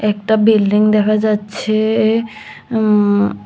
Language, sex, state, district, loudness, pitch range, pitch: Bengali, female, Tripura, West Tripura, -14 LUFS, 205-220 Hz, 215 Hz